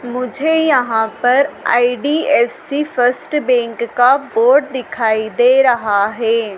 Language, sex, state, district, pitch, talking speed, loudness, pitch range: Hindi, female, Madhya Pradesh, Dhar, 245 Hz, 110 wpm, -15 LUFS, 230-275 Hz